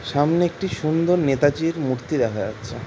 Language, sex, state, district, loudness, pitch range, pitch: Bengali, male, West Bengal, Jhargram, -21 LUFS, 130-165 Hz, 145 Hz